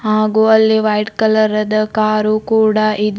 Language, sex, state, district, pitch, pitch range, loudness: Kannada, female, Karnataka, Bidar, 215 Hz, 215-220 Hz, -14 LUFS